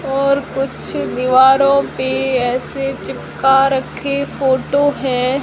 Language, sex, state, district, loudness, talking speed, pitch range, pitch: Hindi, female, Rajasthan, Jaisalmer, -16 LUFS, 100 wpm, 255-275 Hz, 270 Hz